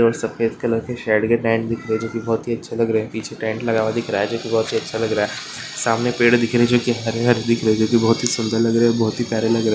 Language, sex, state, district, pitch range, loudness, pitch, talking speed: Hindi, male, Chhattisgarh, Korba, 110-115 Hz, -20 LUFS, 115 Hz, 340 wpm